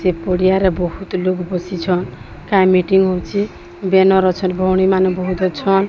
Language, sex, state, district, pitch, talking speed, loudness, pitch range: Odia, female, Odisha, Sambalpur, 185 Hz, 140 wpm, -16 LUFS, 180-190 Hz